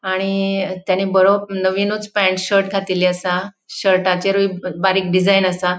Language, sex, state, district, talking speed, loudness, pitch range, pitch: Konkani, female, Goa, North and South Goa, 125 wpm, -17 LUFS, 185-195 Hz, 190 Hz